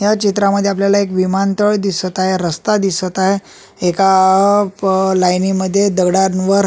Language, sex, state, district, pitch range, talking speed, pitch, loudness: Marathi, male, Maharashtra, Solapur, 185-200 Hz, 110 wpm, 195 Hz, -14 LUFS